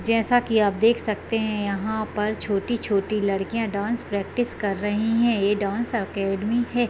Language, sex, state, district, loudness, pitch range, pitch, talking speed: Hindi, female, Chhattisgarh, Bilaspur, -24 LUFS, 200-230 Hz, 215 Hz, 165 wpm